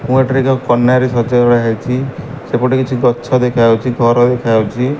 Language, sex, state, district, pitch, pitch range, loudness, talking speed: Odia, male, Odisha, Malkangiri, 125 Hz, 120-130 Hz, -13 LUFS, 180 wpm